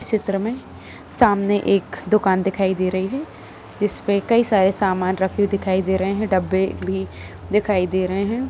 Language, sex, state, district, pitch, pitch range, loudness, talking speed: Hindi, female, Bihar, Darbhanga, 195 Hz, 185-205 Hz, -20 LUFS, 150 wpm